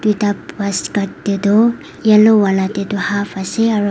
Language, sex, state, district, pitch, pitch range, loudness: Nagamese, female, Nagaland, Dimapur, 205 Hz, 200-215 Hz, -15 LUFS